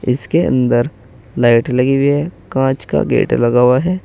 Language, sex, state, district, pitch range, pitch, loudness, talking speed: Hindi, male, Uttar Pradesh, Saharanpur, 120-135 Hz, 125 Hz, -14 LUFS, 175 wpm